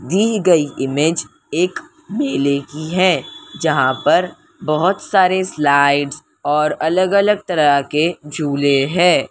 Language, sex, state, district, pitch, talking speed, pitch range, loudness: Hindi, female, Maharashtra, Mumbai Suburban, 155 Hz, 115 wpm, 145-185 Hz, -16 LUFS